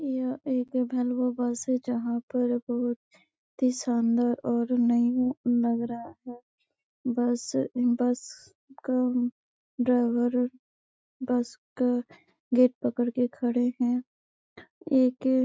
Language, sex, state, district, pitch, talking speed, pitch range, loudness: Hindi, female, Chhattisgarh, Bastar, 245 Hz, 115 wpm, 240-255 Hz, -27 LUFS